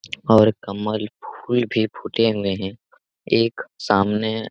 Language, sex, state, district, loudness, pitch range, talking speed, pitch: Hindi, male, Jharkhand, Jamtara, -20 LUFS, 105-115 Hz, 120 wpm, 110 Hz